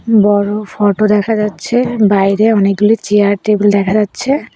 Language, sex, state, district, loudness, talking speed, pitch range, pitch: Bengali, female, West Bengal, Cooch Behar, -12 LUFS, 130 wpm, 205-215 Hz, 210 Hz